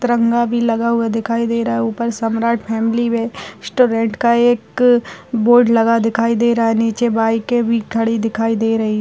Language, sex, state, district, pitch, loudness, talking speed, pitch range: Kumaoni, female, Uttarakhand, Uttarkashi, 230 Hz, -16 LUFS, 205 wpm, 225-235 Hz